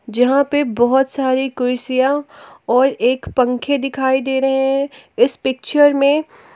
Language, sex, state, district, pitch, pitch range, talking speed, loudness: Hindi, female, Jharkhand, Palamu, 265 Hz, 255-280 Hz, 135 wpm, -17 LUFS